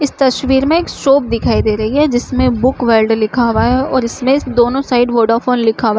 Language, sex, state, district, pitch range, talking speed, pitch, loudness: Chhattisgarhi, female, Chhattisgarh, Jashpur, 230-265 Hz, 230 wpm, 250 Hz, -13 LUFS